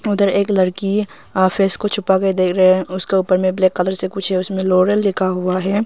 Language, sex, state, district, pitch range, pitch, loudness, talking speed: Hindi, female, Arunachal Pradesh, Longding, 185-200 Hz, 190 Hz, -16 LUFS, 245 wpm